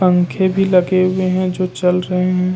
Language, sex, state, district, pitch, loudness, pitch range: Hindi, male, Jharkhand, Ranchi, 185 Hz, -16 LUFS, 180-185 Hz